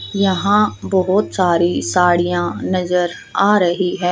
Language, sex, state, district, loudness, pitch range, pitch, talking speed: Hindi, female, Haryana, Jhajjar, -16 LUFS, 175-195 Hz, 180 Hz, 115 wpm